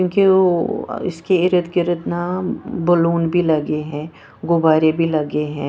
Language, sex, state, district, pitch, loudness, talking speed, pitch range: Hindi, female, Punjab, Kapurthala, 170 Hz, -18 LUFS, 150 wpm, 155-180 Hz